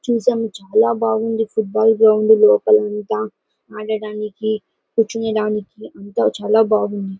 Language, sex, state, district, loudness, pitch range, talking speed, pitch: Telugu, female, Karnataka, Bellary, -17 LUFS, 205-225 Hz, 100 wpm, 215 Hz